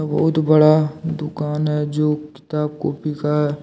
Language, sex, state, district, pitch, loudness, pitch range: Hindi, male, Jharkhand, Deoghar, 150 Hz, -19 LUFS, 150-155 Hz